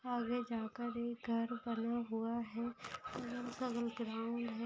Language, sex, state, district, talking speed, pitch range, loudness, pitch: Hindi, female, Maharashtra, Solapur, 115 wpm, 230-245 Hz, -41 LUFS, 235 Hz